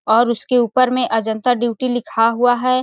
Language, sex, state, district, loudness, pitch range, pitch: Hindi, female, Chhattisgarh, Sarguja, -17 LUFS, 225-250 Hz, 245 Hz